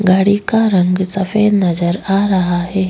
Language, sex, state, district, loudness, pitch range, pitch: Hindi, female, Chhattisgarh, Bastar, -14 LUFS, 180-205 Hz, 190 Hz